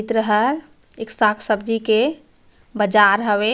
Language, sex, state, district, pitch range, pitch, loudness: Chhattisgarhi, female, Chhattisgarh, Raigarh, 210-230 Hz, 220 Hz, -18 LUFS